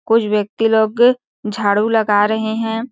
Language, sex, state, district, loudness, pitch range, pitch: Hindi, female, Chhattisgarh, Sarguja, -16 LUFS, 210-225 Hz, 220 Hz